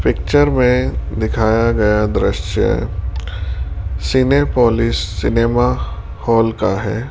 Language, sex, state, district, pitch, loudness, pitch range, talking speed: Hindi, male, Rajasthan, Jaipur, 110 Hz, -16 LUFS, 90-120 Hz, 85 wpm